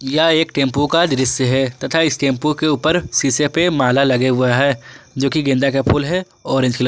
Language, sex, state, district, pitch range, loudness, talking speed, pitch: Hindi, male, Jharkhand, Ranchi, 130-155 Hz, -16 LUFS, 220 wpm, 140 Hz